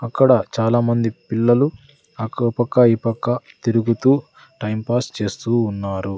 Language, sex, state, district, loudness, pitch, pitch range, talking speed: Telugu, male, Andhra Pradesh, Sri Satya Sai, -19 LUFS, 120 Hz, 110-125 Hz, 115 wpm